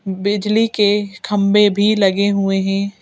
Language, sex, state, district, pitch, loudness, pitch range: Hindi, female, Madhya Pradesh, Bhopal, 200 Hz, -16 LUFS, 195-210 Hz